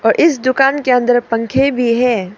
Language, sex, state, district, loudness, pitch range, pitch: Hindi, female, Arunachal Pradesh, Papum Pare, -14 LUFS, 230-270 Hz, 245 Hz